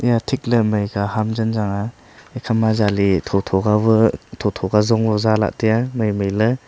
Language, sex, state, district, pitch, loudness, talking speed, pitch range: Wancho, male, Arunachal Pradesh, Longding, 110 Hz, -18 LUFS, 215 wpm, 100-115 Hz